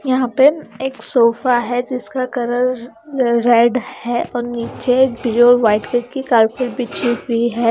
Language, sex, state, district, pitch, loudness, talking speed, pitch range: Hindi, female, Himachal Pradesh, Shimla, 245 Hz, -16 LUFS, 165 wpm, 235-255 Hz